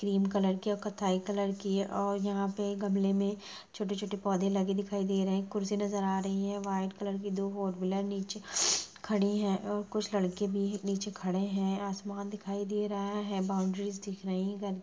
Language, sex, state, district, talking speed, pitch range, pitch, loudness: Hindi, female, Bihar, Gaya, 205 wpm, 195-205 Hz, 200 Hz, -33 LUFS